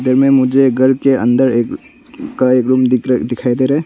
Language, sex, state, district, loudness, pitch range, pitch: Hindi, male, Arunachal Pradesh, Longding, -13 LUFS, 125-135 Hz, 130 Hz